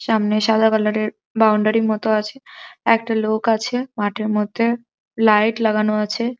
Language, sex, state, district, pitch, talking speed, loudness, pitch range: Bengali, male, West Bengal, Jhargram, 220 Hz, 150 wpm, -19 LUFS, 215-230 Hz